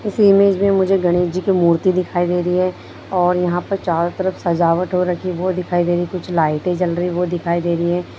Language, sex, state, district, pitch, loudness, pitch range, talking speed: Hindi, female, Bihar, Darbhanga, 180 Hz, -17 LUFS, 175-185 Hz, 265 wpm